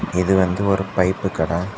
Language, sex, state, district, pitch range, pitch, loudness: Tamil, male, Tamil Nadu, Kanyakumari, 90-95 Hz, 95 Hz, -20 LUFS